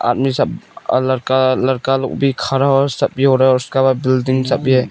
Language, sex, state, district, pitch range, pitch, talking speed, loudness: Hindi, male, Nagaland, Kohima, 130-135 Hz, 130 Hz, 255 wpm, -15 LUFS